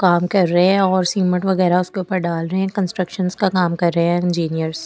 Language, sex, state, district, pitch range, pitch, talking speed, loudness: Hindi, female, Delhi, New Delhi, 175-190 Hz, 180 Hz, 245 wpm, -18 LUFS